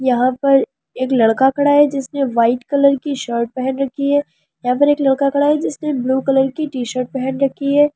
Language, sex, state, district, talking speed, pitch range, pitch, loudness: Hindi, female, Delhi, New Delhi, 210 wpm, 255-280 Hz, 270 Hz, -17 LUFS